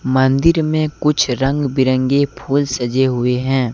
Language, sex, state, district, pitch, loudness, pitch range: Hindi, male, Jharkhand, Deoghar, 135 Hz, -16 LUFS, 130-145 Hz